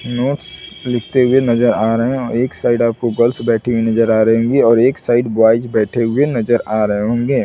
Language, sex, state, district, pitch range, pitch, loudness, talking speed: Hindi, male, Chhattisgarh, Bilaspur, 115-125 Hz, 120 Hz, -15 LUFS, 225 wpm